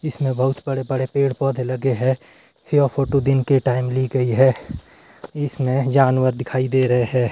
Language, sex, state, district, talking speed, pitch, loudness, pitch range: Hindi, male, Himachal Pradesh, Shimla, 190 wpm, 130 Hz, -19 LUFS, 130-135 Hz